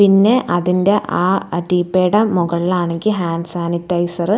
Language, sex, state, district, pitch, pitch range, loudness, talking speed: Malayalam, female, Kerala, Thiruvananthapuram, 180 Hz, 170-195 Hz, -16 LUFS, 110 wpm